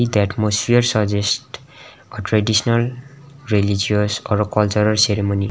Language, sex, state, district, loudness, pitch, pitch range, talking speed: English, male, Sikkim, Gangtok, -18 LUFS, 105 Hz, 105-120 Hz, 110 wpm